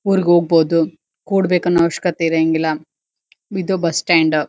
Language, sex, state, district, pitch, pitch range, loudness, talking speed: Kannada, female, Karnataka, Dharwad, 170 Hz, 160-185 Hz, -16 LUFS, 135 wpm